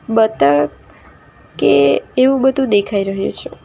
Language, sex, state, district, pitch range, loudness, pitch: Gujarati, female, Gujarat, Valsad, 140-225 Hz, -15 LUFS, 195 Hz